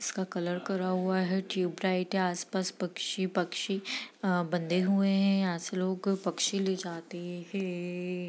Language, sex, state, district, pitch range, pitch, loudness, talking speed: Hindi, female, Bihar, East Champaran, 180-190 Hz, 185 Hz, -31 LUFS, 150 wpm